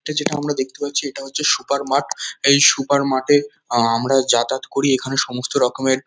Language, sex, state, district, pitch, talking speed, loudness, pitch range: Bengali, male, West Bengal, North 24 Parganas, 135 Hz, 190 wpm, -18 LUFS, 130-140 Hz